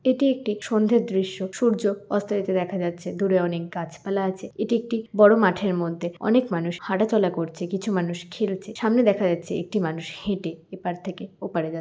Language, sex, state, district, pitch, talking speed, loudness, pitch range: Bengali, female, West Bengal, Kolkata, 190 Hz, 185 wpm, -24 LUFS, 175-215 Hz